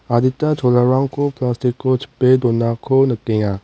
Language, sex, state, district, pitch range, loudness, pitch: Garo, male, Meghalaya, West Garo Hills, 120-135 Hz, -17 LUFS, 125 Hz